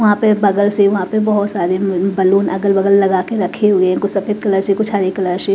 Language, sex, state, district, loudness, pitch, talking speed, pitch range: Hindi, female, Bihar, West Champaran, -15 LUFS, 200 Hz, 250 wpm, 190-205 Hz